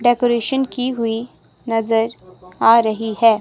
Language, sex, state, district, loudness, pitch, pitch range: Hindi, female, Himachal Pradesh, Shimla, -18 LUFS, 230 Hz, 225-240 Hz